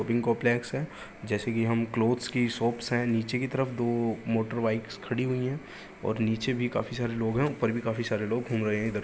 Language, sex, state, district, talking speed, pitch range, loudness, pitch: Hindi, male, Uttar Pradesh, Gorakhpur, 240 wpm, 110-120 Hz, -29 LUFS, 115 Hz